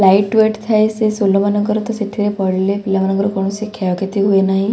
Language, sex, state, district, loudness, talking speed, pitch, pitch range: Odia, female, Odisha, Khordha, -16 LUFS, 190 wpm, 200 Hz, 195-215 Hz